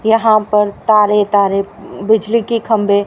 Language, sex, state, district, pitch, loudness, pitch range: Hindi, female, Haryana, Rohtak, 210 Hz, -13 LUFS, 205-220 Hz